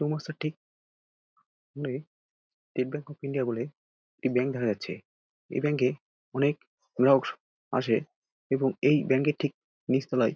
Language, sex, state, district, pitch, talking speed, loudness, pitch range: Bengali, male, West Bengal, Dakshin Dinajpur, 135 Hz, 125 wpm, -29 LUFS, 130-150 Hz